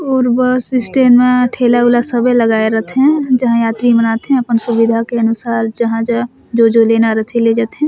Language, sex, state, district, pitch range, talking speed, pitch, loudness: Surgujia, female, Chhattisgarh, Sarguja, 230-250 Hz, 190 wpm, 235 Hz, -12 LUFS